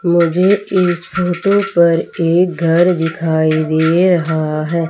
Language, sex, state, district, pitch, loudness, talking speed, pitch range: Hindi, female, Madhya Pradesh, Umaria, 170 Hz, -14 LUFS, 120 wpm, 165-180 Hz